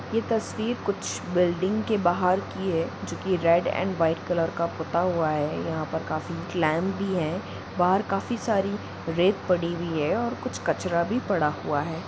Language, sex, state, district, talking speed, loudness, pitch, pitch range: Hindi, female, Jharkhand, Jamtara, 190 wpm, -26 LUFS, 180 Hz, 165-195 Hz